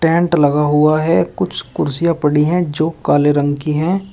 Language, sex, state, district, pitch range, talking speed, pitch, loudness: Hindi, male, Uttar Pradesh, Shamli, 150-170 Hz, 190 wpm, 155 Hz, -15 LUFS